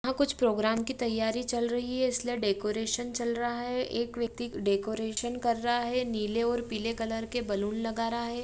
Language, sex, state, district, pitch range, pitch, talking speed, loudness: Hindi, female, Jharkhand, Jamtara, 225-245 Hz, 235 Hz, 190 wpm, -31 LUFS